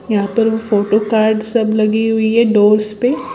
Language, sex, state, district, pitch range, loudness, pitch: Hindi, female, Gujarat, Valsad, 215-225 Hz, -14 LUFS, 220 Hz